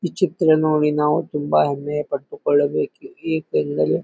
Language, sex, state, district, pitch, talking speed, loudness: Kannada, male, Karnataka, Bijapur, 155 Hz, 120 wpm, -20 LUFS